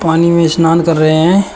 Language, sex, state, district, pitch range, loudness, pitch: Hindi, male, Uttar Pradesh, Shamli, 160-170 Hz, -10 LUFS, 165 Hz